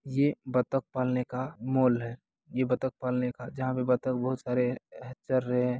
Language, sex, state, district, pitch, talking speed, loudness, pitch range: Hindi, male, Bihar, Bhagalpur, 125 Hz, 195 wpm, -30 LUFS, 125-130 Hz